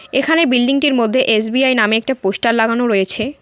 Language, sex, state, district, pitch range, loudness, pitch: Bengali, female, West Bengal, Cooch Behar, 220-265 Hz, -14 LUFS, 240 Hz